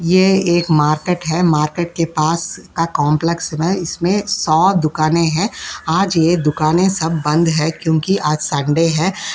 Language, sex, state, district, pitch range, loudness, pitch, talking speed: Hindi, female, Uttar Pradesh, Jyotiba Phule Nagar, 155-180 Hz, -16 LUFS, 165 Hz, 150 wpm